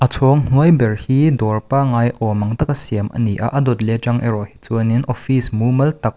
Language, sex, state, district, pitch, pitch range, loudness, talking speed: Mizo, male, Mizoram, Aizawl, 120 Hz, 110-135 Hz, -16 LUFS, 255 wpm